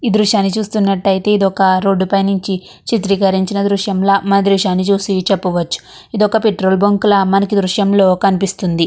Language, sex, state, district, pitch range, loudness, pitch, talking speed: Telugu, female, Andhra Pradesh, Chittoor, 190-200 Hz, -14 LUFS, 195 Hz, 150 wpm